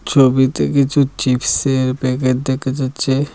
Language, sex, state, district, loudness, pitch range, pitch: Bengali, male, Tripura, Dhalai, -16 LUFS, 130-135 Hz, 130 Hz